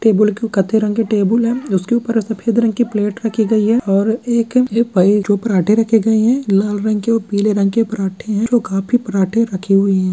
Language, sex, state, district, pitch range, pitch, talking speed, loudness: Hindi, male, Andhra Pradesh, Guntur, 200-230 Hz, 220 Hz, 225 wpm, -15 LUFS